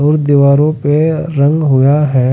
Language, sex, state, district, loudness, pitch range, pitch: Hindi, male, Uttar Pradesh, Saharanpur, -11 LUFS, 140-155 Hz, 145 Hz